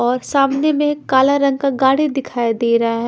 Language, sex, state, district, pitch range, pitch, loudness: Hindi, female, Bihar, Patna, 240-280 Hz, 270 Hz, -16 LUFS